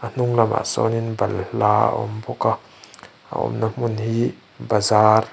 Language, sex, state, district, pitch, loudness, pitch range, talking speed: Mizo, male, Mizoram, Aizawl, 115 Hz, -21 LUFS, 105-120 Hz, 180 wpm